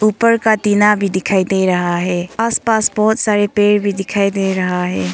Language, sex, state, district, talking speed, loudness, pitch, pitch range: Hindi, female, Arunachal Pradesh, Longding, 200 wpm, -15 LUFS, 200 Hz, 185-215 Hz